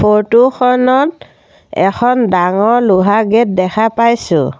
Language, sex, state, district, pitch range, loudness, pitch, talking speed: Assamese, female, Assam, Sonitpur, 200-245 Hz, -12 LUFS, 225 Hz, 105 wpm